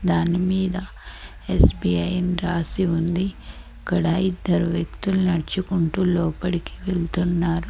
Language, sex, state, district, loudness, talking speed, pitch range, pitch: Telugu, female, Telangana, Mahabubabad, -23 LUFS, 85 wpm, 170-185 Hz, 175 Hz